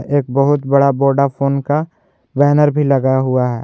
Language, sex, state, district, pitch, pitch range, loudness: Hindi, male, Jharkhand, Garhwa, 140 Hz, 130-145 Hz, -14 LUFS